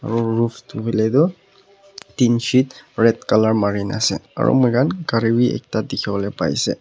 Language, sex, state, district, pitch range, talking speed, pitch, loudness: Nagamese, male, Nagaland, Kohima, 110-135 Hz, 150 wpm, 115 Hz, -19 LUFS